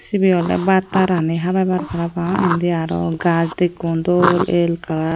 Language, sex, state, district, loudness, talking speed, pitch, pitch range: Chakma, female, Tripura, Unakoti, -18 LUFS, 150 wpm, 175 Hz, 165-185 Hz